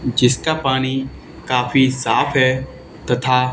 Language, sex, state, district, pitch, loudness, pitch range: Hindi, male, Haryana, Charkhi Dadri, 130 Hz, -17 LUFS, 125-135 Hz